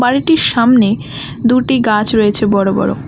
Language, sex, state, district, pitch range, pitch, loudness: Bengali, female, West Bengal, Alipurduar, 205-250 Hz, 225 Hz, -12 LUFS